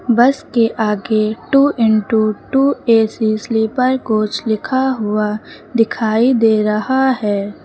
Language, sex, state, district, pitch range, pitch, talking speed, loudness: Hindi, female, Uttar Pradesh, Lucknow, 215-255 Hz, 225 Hz, 120 wpm, -15 LUFS